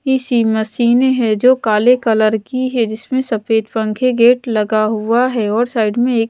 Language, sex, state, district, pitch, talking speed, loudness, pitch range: Hindi, female, Punjab, Pathankot, 230 Hz, 180 wpm, -15 LUFS, 220-250 Hz